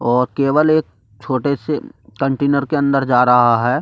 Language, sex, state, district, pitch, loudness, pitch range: Hindi, male, Delhi, New Delhi, 135 Hz, -16 LUFS, 120-140 Hz